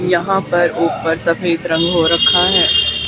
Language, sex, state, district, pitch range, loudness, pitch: Hindi, female, Haryana, Charkhi Dadri, 165-175 Hz, -14 LUFS, 170 Hz